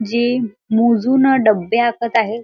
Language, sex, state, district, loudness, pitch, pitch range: Marathi, male, Maharashtra, Chandrapur, -16 LUFS, 235 Hz, 220-240 Hz